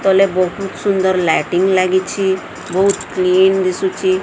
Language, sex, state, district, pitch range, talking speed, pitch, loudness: Odia, female, Odisha, Sambalpur, 185-195 Hz, 115 wpm, 190 Hz, -15 LUFS